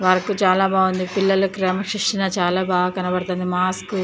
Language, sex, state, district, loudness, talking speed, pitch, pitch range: Telugu, female, Andhra Pradesh, Chittoor, -20 LUFS, 150 wpm, 185 Hz, 185-195 Hz